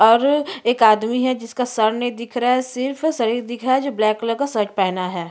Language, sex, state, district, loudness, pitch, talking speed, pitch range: Hindi, female, Chhattisgarh, Jashpur, -19 LUFS, 240 Hz, 250 wpm, 220-255 Hz